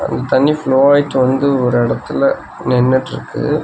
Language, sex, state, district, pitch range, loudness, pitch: Tamil, male, Tamil Nadu, Nilgiris, 125-145 Hz, -14 LUFS, 130 Hz